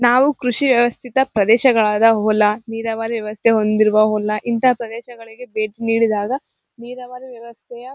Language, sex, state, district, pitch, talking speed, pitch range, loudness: Kannada, female, Karnataka, Gulbarga, 230 Hz, 115 wpm, 215-250 Hz, -17 LUFS